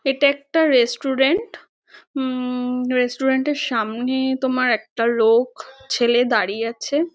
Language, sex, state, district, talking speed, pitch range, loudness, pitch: Bengali, female, West Bengal, North 24 Parganas, 115 wpm, 235-270 Hz, -20 LUFS, 255 Hz